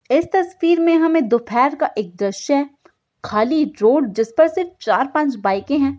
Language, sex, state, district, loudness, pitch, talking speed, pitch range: Hindi, female, Uttar Pradesh, Gorakhpur, -18 LUFS, 290 Hz, 170 wpm, 230-330 Hz